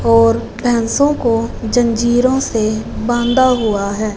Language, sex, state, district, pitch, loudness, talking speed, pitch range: Hindi, female, Punjab, Fazilka, 230 Hz, -15 LUFS, 115 wpm, 215-245 Hz